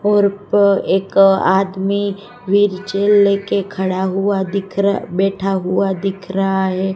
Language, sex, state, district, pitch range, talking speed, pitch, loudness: Hindi, female, Gujarat, Gandhinagar, 190-200 Hz, 130 wpm, 195 Hz, -16 LUFS